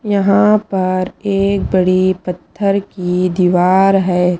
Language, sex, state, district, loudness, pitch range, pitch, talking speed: Hindi, female, Punjab, Pathankot, -14 LUFS, 180-195 Hz, 185 Hz, 110 wpm